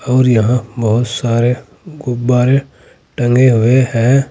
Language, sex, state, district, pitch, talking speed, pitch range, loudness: Hindi, male, Uttar Pradesh, Saharanpur, 125 Hz, 110 wpm, 120-130 Hz, -13 LUFS